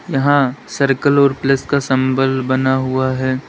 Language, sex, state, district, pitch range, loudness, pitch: Hindi, male, Uttar Pradesh, Lalitpur, 130-140 Hz, -16 LUFS, 135 Hz